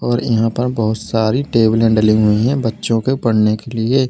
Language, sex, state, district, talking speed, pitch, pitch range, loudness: Hindi, male, Uttar Pradesh, Lalitpur, 205 wpm, 115 Hz, 110-120 Hz, -15 LUFS